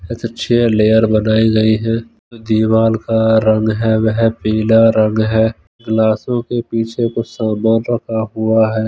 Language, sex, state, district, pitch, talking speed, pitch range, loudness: Hindi, male, Punjab, Fazilka, 110 Hz, 150 wpm, 110-115 Hz, -14 LUFS